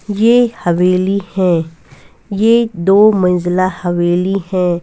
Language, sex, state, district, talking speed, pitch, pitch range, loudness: Hindi, female, Punjab, Fazilka, 100 wpm, 185 Hz, 175-205 Hz, -13 LUFS